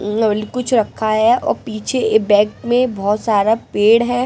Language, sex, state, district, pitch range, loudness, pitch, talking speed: Hindi, female, Delhi, New Delhi, 210-235 Hz, -16 LUFS, 220 Hz, 170 wpm